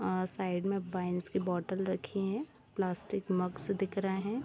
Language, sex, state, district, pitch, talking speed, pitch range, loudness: Hindi, female, Jharkhand, Jamtara, 190 Hz, 175 wpm, 180-200 Hz, -35 LUFS